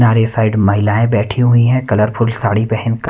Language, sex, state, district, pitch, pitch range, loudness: Hindi, male, Punjab, Kapurthala, 115 Hz, 105-120 Hz, -14 LUFS